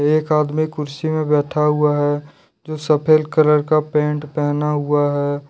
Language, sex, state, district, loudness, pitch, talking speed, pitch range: Hindi, male, Jharkhand, Deoghar, -18 LUFS, 150 Hz, 165 wpm, 145-155 Hz